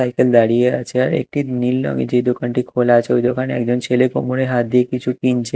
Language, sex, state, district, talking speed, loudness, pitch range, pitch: Bengali, male, Odisha, Malkangiri, 215 wpm, -17 LUFS, 120-125 Hz, 125 Hz